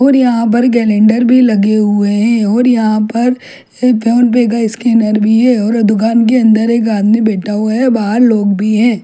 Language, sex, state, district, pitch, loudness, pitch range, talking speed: Hindi, female, Chhattisgarh, Jashpur, 225 Hz, -11 LUFS, 215-240 Hz, 190 wpm